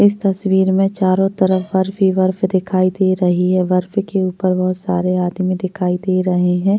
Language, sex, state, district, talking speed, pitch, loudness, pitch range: Hindi, female, Maharashtra, Chandrapur, 195 wpm, 185 Hz, -16 LUFS, 185-190 Hz